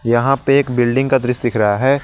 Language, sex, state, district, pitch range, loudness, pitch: Hindi, male, Jharkhand, Garhwa, 120-135 Hz, -15 LUFS, 125 Hz